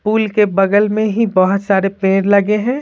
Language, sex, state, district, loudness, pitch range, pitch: Hindi, female, Bihar, Patna, -14 LUFS, 195-215 Hz, 205 Hz